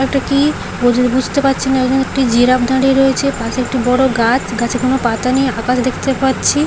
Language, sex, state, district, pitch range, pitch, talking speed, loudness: Bengali, female, West Bengal, Paschim Medinipur, 245-270 Hz, 260 Hz, 200 wpm, -14 LUFS